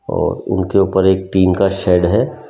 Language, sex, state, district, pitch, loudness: Hindi, male, Delhi, New Delhi, 95 Hz, -15 LUFS